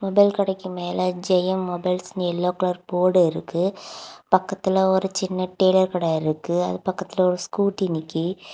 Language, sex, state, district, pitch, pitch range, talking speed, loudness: Tamil, female, Tamil Nadu, Kanyakumari, 185 Hz, 180-190 Hz, 140 wpm, -22 LUFS